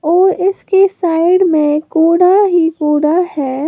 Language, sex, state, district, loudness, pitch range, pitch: Hindi, female, Uttar Pradesh, Lalitpur, -12 LUFS, 305-370 Hz, 335 Hz